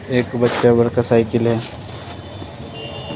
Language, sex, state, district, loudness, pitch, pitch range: Hindi, male, Bihar, West Champaran, -17 LUFS, 115 Hz, 115-120 Hz